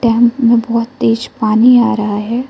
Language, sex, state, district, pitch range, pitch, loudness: Hindi, female, Arunachal Pradesh, Lower Dibang Valley, 225-240 Hz, 230 Hz, -12 LUFS